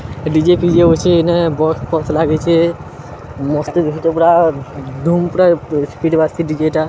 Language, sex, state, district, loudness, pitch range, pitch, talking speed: Odia, male, Odisha, Sambalpur, -14 LUFS, 155-170 Hz, 160 Hz, 120 wpm